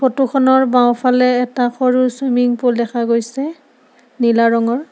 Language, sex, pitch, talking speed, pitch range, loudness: Assamese, female, 250 Hz, 120 wpm, 240-260 Hz, -15 LUFS